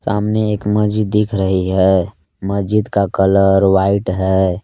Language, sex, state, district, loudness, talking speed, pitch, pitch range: Hindi, male, Jharkhand, Palamu, -15 LUFS, 140 wpm, 100 Hz, 95-105 Hz